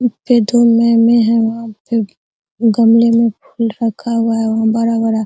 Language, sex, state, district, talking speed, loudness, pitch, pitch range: Hindi, female, Bihar, Araria, 150 wpm, -13 LUFS, 230 Hz, 225-235 Hz